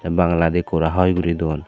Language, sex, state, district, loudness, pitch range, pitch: Chakma, male, Tripura, Dhalai, -19 LUFS, 80-90 Hz, 85 Hz